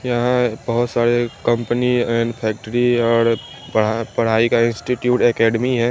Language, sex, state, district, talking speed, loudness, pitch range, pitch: Hindi, male, Chandigarh, Chandigarh, 130 wpm, -18 LUFS, 115-125 Hz, 120 Hz